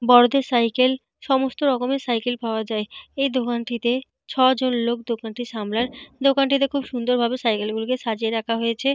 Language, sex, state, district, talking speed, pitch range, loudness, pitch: Bengali, female, Jharkhand, Jamtara, 145 wpm, 230-265 Hz, -22 LUFS, 245 Hz